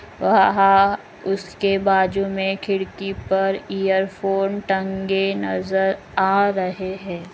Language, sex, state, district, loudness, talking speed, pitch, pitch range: Magahi, female, Bihar, Gaya, -20 LUFS, 105 wpm, 195 Hz, 190-195 Hz